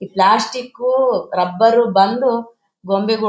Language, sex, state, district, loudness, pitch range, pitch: Kannada, male, Karnataka, Bellary, -16 LUFS, 195-250 Hz, 225 Hz